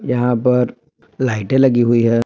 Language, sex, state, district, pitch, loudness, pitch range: Hindi, male, Jharkhand, Palamu, 125 Hz, -16 LUFS, 120-125 Hz